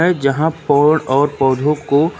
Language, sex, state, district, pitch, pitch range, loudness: Hindi, male, Uttar Pradesh, Lucknow, 145 Hz, 140-160 Hz, -15 LUFS